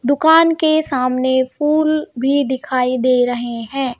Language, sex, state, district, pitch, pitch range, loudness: Hindi, female, Madhya Pradesh, Bhopal, 260 Hz, 255-305 Hz, -16 LUFS